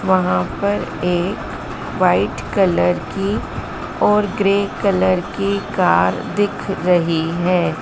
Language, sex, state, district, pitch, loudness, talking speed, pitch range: Hindi, female, Madhya Pradesh, Dhar, 180 Hz, -18 LUFS, 105 wpm, 120-200 Hz